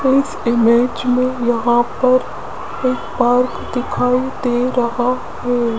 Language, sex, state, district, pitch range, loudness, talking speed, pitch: Hindi, female, Rajasthan, Jaipur, 240-255 Hz, -17 LUFS, 115 wpm, 245 Hz